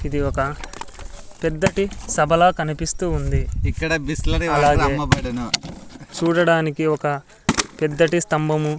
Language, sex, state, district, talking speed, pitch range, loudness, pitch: Telugu, male, Andhra Pradesh, Sri Satya Sai, 75 wpm, 145-165 Hz, -20 LUFS, 155 Hz